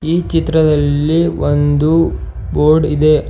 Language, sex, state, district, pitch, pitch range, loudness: Kannada, male, Karnataka, Bidar, 155 Hz, 150-160 Hz, -14 LUFS